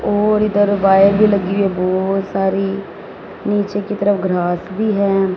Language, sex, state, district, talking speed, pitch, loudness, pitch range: Hindi, female, Punjab, Fazilka, 155 wpm, 195 Hz, -16 LUFS, 195-205 Hz